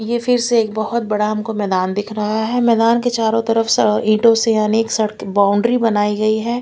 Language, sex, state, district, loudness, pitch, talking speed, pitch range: Hindi, female, Chandigarh, Chandigarh, -16 LUFS, 220 Hz, 215 wpm, 215-230 Hz